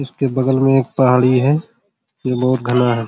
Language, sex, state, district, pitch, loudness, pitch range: Hindi, male, Jharkhand, Jamtara, 130 Hz, -16 LUFS, 125-140 Hz